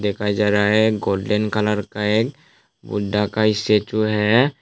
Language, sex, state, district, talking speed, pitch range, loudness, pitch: Hindi, male, Tripura, West Tripura, 155 wpm, 105-110 Hz, -19 LUFS, 105 Hz